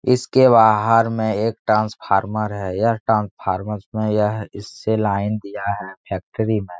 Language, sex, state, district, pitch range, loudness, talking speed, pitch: Hindi, male, Bihar, Jahanabad, 100-110 Hz, -19 LUFS, 150 wpm, 105 Hz